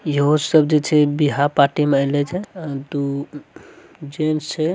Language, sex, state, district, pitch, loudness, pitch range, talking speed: Angika, male, Bihar, Araria, 150 Hz, -19 LUFS, 145-155 Hz, 190 wpm